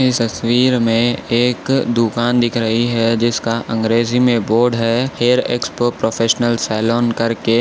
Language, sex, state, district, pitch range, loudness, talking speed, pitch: Hindi, male, Maharashtra, Nagpur, 115-120 Hz, -16 LUFS, 125 wpm, 120 Hz